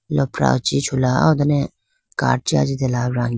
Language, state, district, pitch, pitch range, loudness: Idu Mishmi, Arunachal Pradesh, Lower Dibang Valley, 130 Hz, 120-145 Hz, -19 LUFS